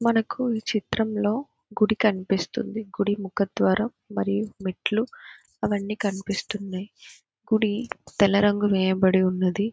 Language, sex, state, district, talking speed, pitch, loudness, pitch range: Telugu, female, Andhra Pradesh, Krishna, 100 wpm, 205 Hz, -25 LUFS, 190-220 Hz